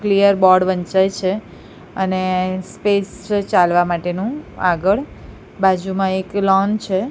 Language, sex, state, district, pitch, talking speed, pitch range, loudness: Gujarati, female, Gujarat, Gandhinagar, 190 Hz, 110 wpm, 185-200 Hz, -18 LUFS